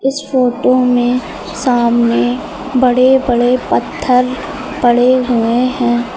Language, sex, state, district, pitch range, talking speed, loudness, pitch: Hindi, female, Uttar Pradesh, Lucknow, 240-255 Hz, 95 wpm, -13 LUFS, 250 Hz